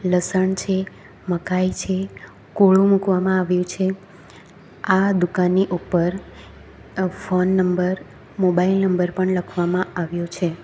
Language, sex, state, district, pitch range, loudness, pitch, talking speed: Gujarati, female, Gujarat, Valsad, 180-190 Hz, -20 LUFS, 185 Hz, 115 wpm